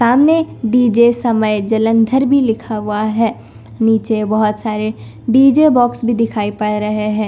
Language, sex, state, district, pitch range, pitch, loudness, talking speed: Hindi, female, Punjab, Kapurthala, 210-240 Hz, 225 Hz, -14 LUFS, 150 wpm